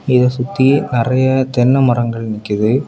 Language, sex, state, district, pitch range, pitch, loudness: Tamil, male, Tamil Nadu, Kanyakumari, 115-130 Hz, 125 Hz, -14 LUFS